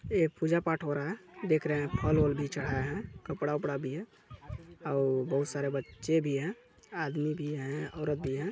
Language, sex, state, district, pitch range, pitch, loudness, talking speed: Hindi, male, Chhattisgarh, Balrampur, 140-160 Hz, 145 Hz, -33 LUFS, 195 wpm